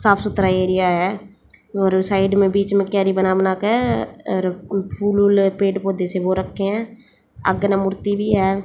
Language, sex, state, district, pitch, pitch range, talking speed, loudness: Hindi, female, Haryana, Jhajjar, 195 Hz, 190-200 Hz, 180 wpm, -19 LUFS